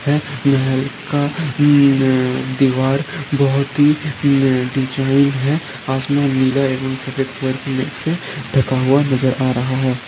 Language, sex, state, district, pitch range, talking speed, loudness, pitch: Hindi, male, Rajasthan, Nagaur, 130-140 Hz, 120 wpm, -17 LUFS, 135 Hz